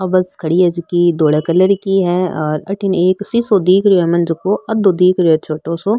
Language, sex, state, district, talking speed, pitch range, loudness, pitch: Marwari, female, Rajasthan, Nagaur, 230 wpm, 170-195 Hz, -14 LUFS, 180 Hz